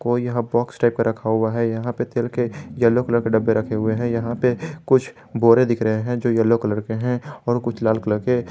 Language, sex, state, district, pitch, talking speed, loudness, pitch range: Hindi, male, Jharkhand, Garhwa, 120 Hz, 255 wpm, -20 LUFS, 115-120 Hz